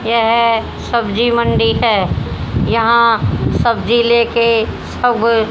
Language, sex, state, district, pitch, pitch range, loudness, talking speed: Hindi, female, Haryana, Jhajjar, 230 Hz, 230-235 Hz, -14 LUFS, 85 wpm